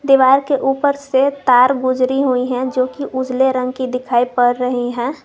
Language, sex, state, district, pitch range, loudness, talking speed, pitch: Hindi, female, Jharkhand, Garhwa, 250-270 Hz, -16 LUFS, 195 wpm, 260 Hz